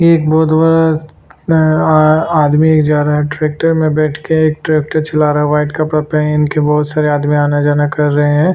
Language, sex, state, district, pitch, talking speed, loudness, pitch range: Hindi, male, Chhattisgarh, Sukma, 155 Hz, 205 wpm, -12 LUFS, 150-155 Hz